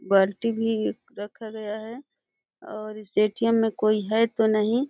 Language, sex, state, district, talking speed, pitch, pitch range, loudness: Hindi, female, Uttar Pradesh, Deoria, 185 wpm, 220 Hz, 210-225 Hz, -25 LUFS